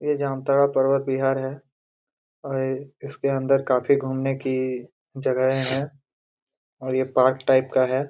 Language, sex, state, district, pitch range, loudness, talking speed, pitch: Hindi, male, Jharkhand, Jamtara, 130-140 Hz, -23 LUFS, 140 wpm, 135 Hz